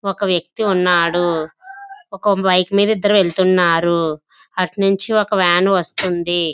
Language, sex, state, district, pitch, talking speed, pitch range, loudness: Telugu, female, Andhra Pradesh, Visakhapatnam, 185 Hz, 120 wpm, 175-200 Hz, -16 LUFS